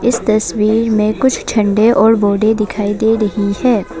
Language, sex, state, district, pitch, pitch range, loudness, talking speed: Hindi, female, Assam, Kamrup Metropolitan, 215 Hz, 205-225 Hz, -13 LUFS, 165 wpm